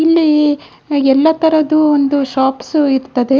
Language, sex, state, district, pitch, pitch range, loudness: Kannada, female, Karnataka, Dakshina Kannada, 290 Hz, 270-310 Hz, -13 LUFS